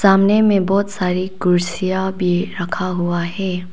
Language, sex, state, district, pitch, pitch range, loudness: Hindi, female, Arunachal Pradesh, Papum Pare, 185 Hz, 180-195 Hz, -18 LUFS